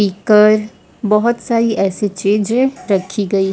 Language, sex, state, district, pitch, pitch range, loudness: Hindi, female, Odisha, Sambalpur, 210 Hz, 195-225 Hz, -15 LUFS